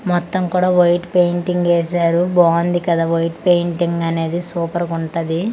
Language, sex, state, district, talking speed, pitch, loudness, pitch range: Telugu, female, Andhra Pradesh, Manyam, 130 wpm, 175 Hz, -17 LUFS, 170-175 Hz